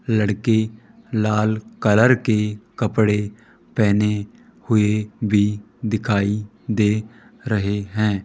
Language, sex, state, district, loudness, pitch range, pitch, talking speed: Hindi, male, Rajasthan, Jaipur, -20 LUFS, 105-110 Hz, 105 Hz, 85 wpm